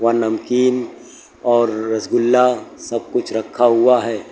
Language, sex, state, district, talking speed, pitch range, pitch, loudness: Hindi, male, Uttar Pradesh, Lucknow, 125 wpm, 110-125 Hz, 120 Hz, -17 LUFS